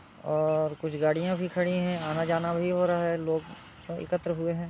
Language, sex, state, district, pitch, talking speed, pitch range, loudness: Hindi, male, Bihar, Muzaffarpur, 170 Hz, 205 wpm, 160-180 Hz, -29 LUFS